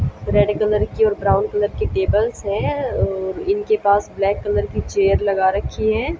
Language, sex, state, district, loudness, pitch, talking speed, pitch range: Hindi, female, Haryana, Jhajjar, -19 LUFS, 200 Hz, 185 wpm, 190-215 Hz